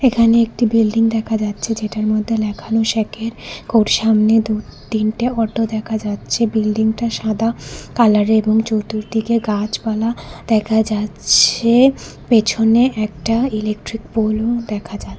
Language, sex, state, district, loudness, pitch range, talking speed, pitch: Bengali, female, Tripura, West Tripura, -17 LUFS, 215-230 Hz, 120 wpm, 220 Hz